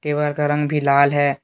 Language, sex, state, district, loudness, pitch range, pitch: Hindi, male, Jharkhand, Deoghar, -18 LUFS, 140-150 Hz, 145 Hz